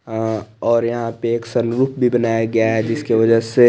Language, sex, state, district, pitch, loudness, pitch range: Hindi, male, Chandigarh, Chandigarh, 115 Hz, -18 LUFS, 115-120 Hz